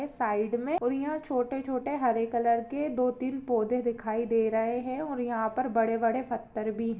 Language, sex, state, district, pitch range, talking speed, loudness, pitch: Hindi, female, Chhattisgarh, Kabirdham, 230-260 Hz, 180 wpm, -29 LUFS, 240 Hz